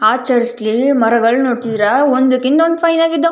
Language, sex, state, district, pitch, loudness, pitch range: Kannada, female, Karnataka, Chamarajanagar, 255 Hz, -13 LUFS, 235-290 Hz